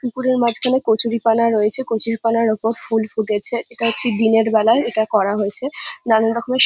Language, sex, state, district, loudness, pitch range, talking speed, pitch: Bengali, female, West Bengal, Jhargram, -17 LUFS, 220-235 Hz, 155 wpm, 225 Hz